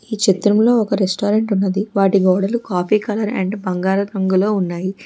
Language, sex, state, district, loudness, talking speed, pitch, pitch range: Telugu, female, Telangana, Hyderabad, -17 LUFS, 155 wpm, 200 Hz, 190-215 Hz